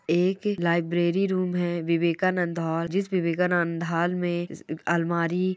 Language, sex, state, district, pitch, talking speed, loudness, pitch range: Hindi, male, West Bengal, Purulia, 175 Hz, 95 wpm, -25 LUFS, 170-180 Hz